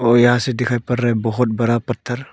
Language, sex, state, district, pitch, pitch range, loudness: Hindi, female, Arunachal Pradesh, Longding, 120 Hz, 120-125 Hz, -18 LUFS